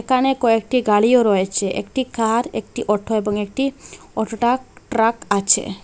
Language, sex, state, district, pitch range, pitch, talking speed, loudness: Bengali, female, Assam, Hailakandi, 210-250 Hz, 225 Hz, 145 wpm, -19 LUFS